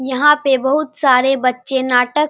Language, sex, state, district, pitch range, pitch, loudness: Hindi, male, Bihar, Saharsa, 255-295 Hz, 265 Hz, -15 LUFS